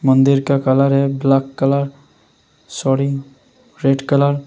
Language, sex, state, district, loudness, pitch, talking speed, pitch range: Hindi, male, Uttar Pradesh, Hamirpur, -16 LUFS, 135 Hz, 150 wpm, 135-140 Hz